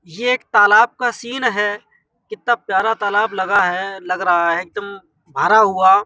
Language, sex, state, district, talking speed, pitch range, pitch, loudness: Hindi, male, Uttar Pradesh, Hamirpur, 190 wpm, 190-230 Hz, 205 Hz, -16 LUFS